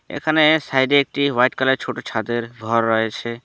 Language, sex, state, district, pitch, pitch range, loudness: Bengali, male, West Bengal, Alipurduar, 125 Hz, 115-140 Hz, -19 LUFS